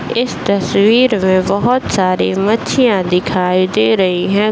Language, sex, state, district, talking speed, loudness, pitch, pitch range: Hindi, female, Bihar, Bhagalpur, 120 wpm, -13 LUFS, 195 Hz, 185-220 Hz